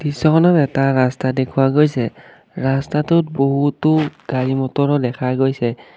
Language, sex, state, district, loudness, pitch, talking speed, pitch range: Assamese, male, Assam, Kamrup Metropolitan, -17 LUFS, 135 Hz, 110 wpm, 130-150 Hz